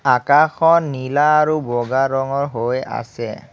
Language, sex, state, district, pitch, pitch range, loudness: Assamese, male, Assam, Kamrup Metropolitan, 135 Hz, 130-150 Hz, -17 LUFS